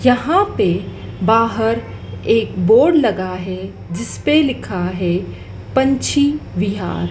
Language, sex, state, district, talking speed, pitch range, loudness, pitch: Hindi, female, Madhya Pradesh, Dhar, 100 wpm, 185-270 Hz, -17 LUFS, 225 Hz